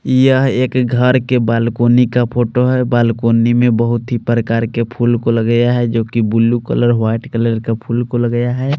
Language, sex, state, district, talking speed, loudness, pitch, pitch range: Hindi, male, Delhi, New Delhi, 200 wpm, -14 LUFS, 120 Hz, 115-125 Hz